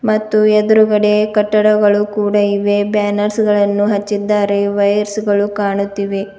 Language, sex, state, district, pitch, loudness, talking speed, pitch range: Kannada, female, Karnataka, Bidar, 205 Hz, -14 LUFS, 105 wpm, 205-210 Hz